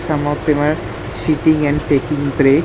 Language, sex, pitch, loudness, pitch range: English, male, 145 Hz, -17 LUFS, 140-150 Hz